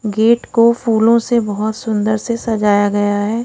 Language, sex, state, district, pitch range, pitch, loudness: Hindi, female, Odisha, Khordha, 210-230 Hz, 220 Hz, -15 LUFS